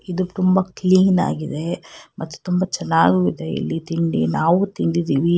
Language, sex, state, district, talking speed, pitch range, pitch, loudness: Kannada, female, Karnataka, Shimoga, 135 wpm, 155-185 Hz, 175 Hz, -19 LUFS